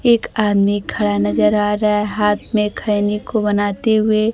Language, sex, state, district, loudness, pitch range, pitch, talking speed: Hindi, female, Bihar, Kaimur, -17 LUFS, 205-215 Hz, 210 Hz, 180 wpm